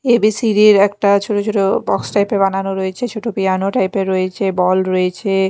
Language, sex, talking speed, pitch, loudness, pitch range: Bengali, female, 185 wpm, 195 Hz, -16 LUFS, 190-210 Hz